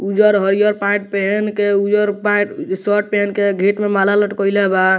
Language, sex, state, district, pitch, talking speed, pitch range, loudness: Bhojpuri, male, Bihar, Muzaffarpur, 205 Hz, 180 wpm, 200-205 Hz, -16 LUFS